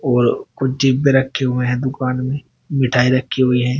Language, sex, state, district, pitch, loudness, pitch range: Hindi, male, Uttar Pradesh, Shamli, 130 Hz, -17 LUFS, 125-135 Hz